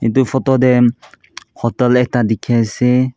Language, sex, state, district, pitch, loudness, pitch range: Nagamese, male, Nagaland, Kohima, 125 Hz, -15 LUFS, 115-130 Hz